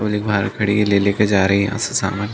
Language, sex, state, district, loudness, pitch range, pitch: Hindi, male, Chhattisgarh, Bastar, -17 LUFS, 100-105 Hz, 100 Hz